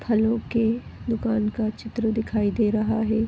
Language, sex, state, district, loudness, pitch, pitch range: Hindi, female, Goa, North and South Goa, -24 LUFS, 220 Hz, 215-225 Hz